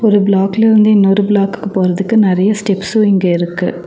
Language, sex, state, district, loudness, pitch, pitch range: Tamil, female, Tamil Nadu, Nilgiris, -12 LUFS, 200 Hz, 190-210 Hz